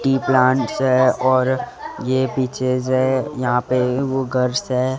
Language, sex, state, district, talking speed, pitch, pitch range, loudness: Hindi, male, Delhi, New Delhi, 145 wpm, 130 Hz, 125-130 Hz, -19 LUFS